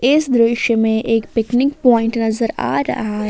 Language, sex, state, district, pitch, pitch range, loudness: Hindi, female, Jharkhand, Palamu, 230 Hz, 225-250 Hz, -16 LUFS